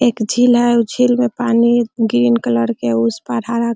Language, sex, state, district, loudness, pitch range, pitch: Hindi, female, Bihar, Araria, -15 LUFS, 145-240 Hz, 235 Hz